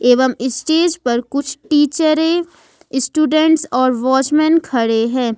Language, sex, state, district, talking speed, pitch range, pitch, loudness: Hindi, female, Jharkhand, Ranchi, 110 wpm, 255-315 Hz, 275 Hz, -15 LUFS